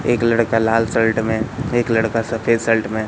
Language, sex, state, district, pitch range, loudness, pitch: Hindi, male, Madhya Pradesh, Katni, 110-115 Hz, -18 LUFS, 115 Hz